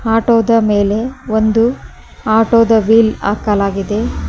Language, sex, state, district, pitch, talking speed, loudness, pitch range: Kannada, female, Karnataka, Koppal, 220 Hz, 85 wpm, -13 LUFS, 205-230 Hz